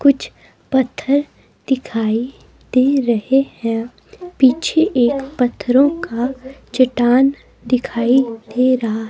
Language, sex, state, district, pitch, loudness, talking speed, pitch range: Hindi, female, Himachal Pradesh, Shimla, 255 Hz, -17 LUFS, 90 wpm, 240-270 Hz